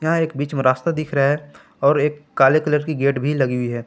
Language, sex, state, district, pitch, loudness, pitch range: Hindi, male, Jharkhand, Palamu, 145 Hz, -19 LUFS, 135-150 Hz